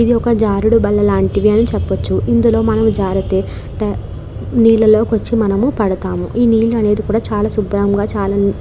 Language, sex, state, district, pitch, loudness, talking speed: Telugu, female, Andhra Pradesh, Krishna, 200 Hz, -14 LUFS, 160 wpm